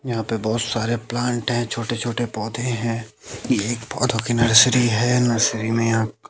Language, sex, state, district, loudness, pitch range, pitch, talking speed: Hindi, male, Bihar, West Champaran, -20 LUFS, 115-120 Hz, 115 Hz, 180 wpm